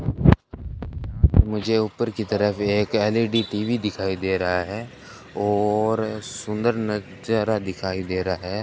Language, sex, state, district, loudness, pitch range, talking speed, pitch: Hindi, male, Rajasthan, Bikaner, -23 LUFS, 95-110 Hz, 140 wpm, 105 Hz